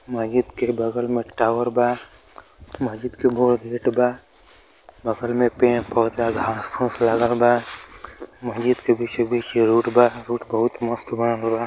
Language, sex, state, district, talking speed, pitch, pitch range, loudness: Hindi, male, Uttar Pradesh, Ghazipur, 150 wpm, 120 Hz, 115-120 Hz, -21 LUFS